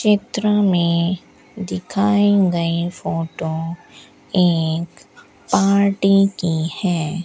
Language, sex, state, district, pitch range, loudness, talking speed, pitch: Hindi, female, Rajasthan, Bikaner, 165-200 Hz, -19 LUFS, 75 wpm, 175 Hz